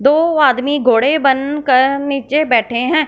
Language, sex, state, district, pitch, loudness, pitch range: Hindi, female, Punjab, Fazilka, 275 Hz, -14 LUFS, 255-295 Hz